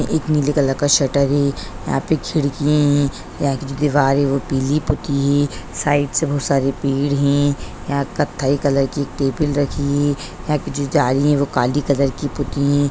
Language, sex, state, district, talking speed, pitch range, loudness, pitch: Hindi, female, Bihar, Sitamarhi, 200 wpm, 140-145 Hz, -18 LUFS, 140 Hz